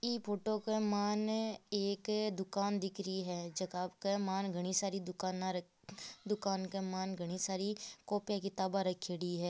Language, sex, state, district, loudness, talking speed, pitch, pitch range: Marwari, female, Rajasthan, Nagaur, -38 LUFS, 150 wpm, 195 Hz, 185-205 Hz